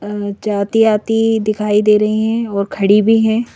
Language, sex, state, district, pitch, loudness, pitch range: Hindi, female, Madhya Pradesh, Bhopal, 215 Hz, -14 LUFS, 205-225 Hz